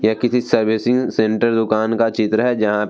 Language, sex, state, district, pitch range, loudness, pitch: Hindi, male, Bihar, Vaishali, 110-120 Hz, -17 LUFS, 110 Hz